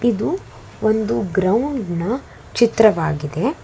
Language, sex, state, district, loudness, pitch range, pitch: Kannada, female, Karnataka, Bangalore, -19 LUFS, 190-240 Hz, 220 Hz